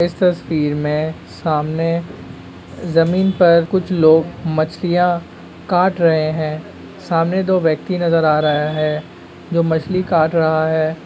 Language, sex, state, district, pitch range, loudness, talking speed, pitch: Hindi, male, West Bengal, Kolkata, 155-175 Hz, -17 LUFS, 130 wpm, 165 Hz